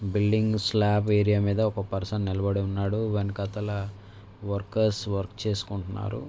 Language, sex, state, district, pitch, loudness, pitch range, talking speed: Telugu, male, Andhra Pradesh, Visakhapatnam, 100 Hz, -27 LUFS, 100-105 Hz, 115 wpm